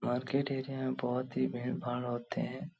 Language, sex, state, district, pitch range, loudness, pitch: Hindi, male, Bihar, Jahanabad, 120-130 Hz, -35 LUFS, 125 Hz